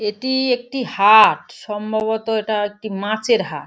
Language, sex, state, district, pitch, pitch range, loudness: Bengali, female, West Bengal, Paschim Medinipur, 220 Hz, 210-235 Hz, -18 LUFS